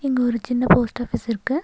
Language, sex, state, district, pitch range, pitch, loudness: Tamil, female, Tamil Nadu, Nilgiris, 235-255 Hz, 245 Hz, -21 LUFS